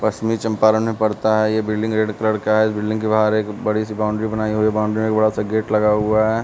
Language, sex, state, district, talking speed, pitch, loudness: Hindi, male, Bihar, West Champaran, 290 wpm, 110 Hz, -19 LUFS